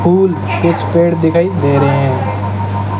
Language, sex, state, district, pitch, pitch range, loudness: Hindi, male, Rajasthan, Bikaner, 140 Hz, 105-170 Hz, -13 LUFS